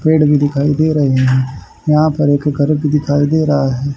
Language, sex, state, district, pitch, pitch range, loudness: Hindi, male, Haryana, Charkhi Dadri, 145 Hz, 140-150 Hz, -14 LUFS